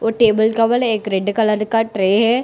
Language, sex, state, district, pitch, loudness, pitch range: Hindi, female, Telangana, Hyderabad, 225 Hz, -16 LUFS, 210-230 Hz